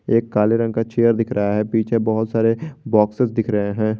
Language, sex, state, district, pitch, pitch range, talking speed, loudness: Hindi, male, Jharkhand, Garhwa, 115 Hz, 110-115 Hz, 225 wpm, -19 LUFS